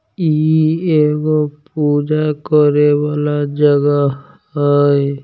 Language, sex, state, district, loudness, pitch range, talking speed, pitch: Maithili, male, Bihar, Samastipur, -14 LUFS, 145-155 Hz, 80 wpm, 150 Hz